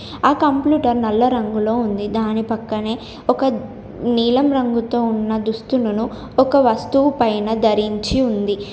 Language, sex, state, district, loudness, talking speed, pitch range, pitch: Telugu, female, Telangana, Komaram Bheem, -18 LUFS, 115 wpm, 220-255 Hz, 230 Hz